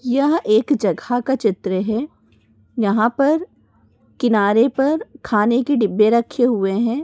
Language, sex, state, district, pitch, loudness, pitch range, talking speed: Hindi, female, Uttar Pradesh, Deoria, 235 Hz, -18 LUFS, 210-265 Hz, 135 wpm